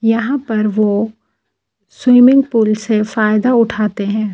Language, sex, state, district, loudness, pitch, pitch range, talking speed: Hindi, female, Delhi, New Delhi, -14 LUFS, 220 Hz, 215-240 Hz, 125 wpm